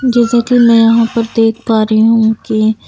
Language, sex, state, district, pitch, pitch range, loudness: Hindi, female, Bihar, Patna, 225 Hz, 220-235 Hz, -11 LUFS